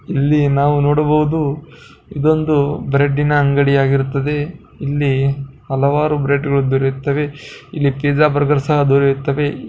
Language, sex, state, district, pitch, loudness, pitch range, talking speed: Kannada, male, Karnataka, Bijapur, 145 Hz, -16 LUFS, 140-150 Hz, 95 wpm